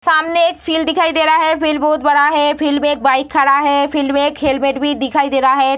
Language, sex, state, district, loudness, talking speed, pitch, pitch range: Hindi, female, Bihar, Samastipur, -14 LUFS, 270 wpm, 290 Hz, 280-315 Hz